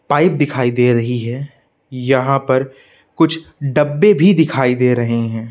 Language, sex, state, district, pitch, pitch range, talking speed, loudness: Hindi, male, Madhya Pradesh, Bhopal, 135 Hz, 125-150 Hz, 150 wpm, -15 LUFS